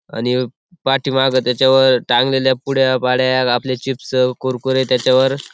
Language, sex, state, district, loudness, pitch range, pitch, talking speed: Marathi, male, Maharashtra, Aurangabad, -16 LUFS, 125-135 Hz, 130 Hz, 110 wpm